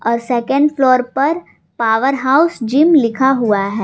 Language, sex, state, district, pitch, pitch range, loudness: Hindi, female, Jharkhand, Garhwa, 260 Hz, 230-275 Hz, -14 LUFS